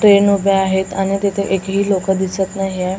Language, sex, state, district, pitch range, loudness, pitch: Marathi, female, Maharashtra, Gondia, 190-200 Hz, -16 LUFS, 195 Hz